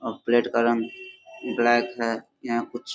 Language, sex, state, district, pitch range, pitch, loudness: Hindi, male, Bihar, Darbhanga, 115-130 Hz, 120 Hz, -25 LUFS